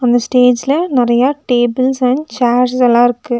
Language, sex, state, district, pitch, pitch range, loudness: Tamil, female, Tamil Nadu, Nilgiris, 250 Hz, 240-260 Hz, -13 LUFS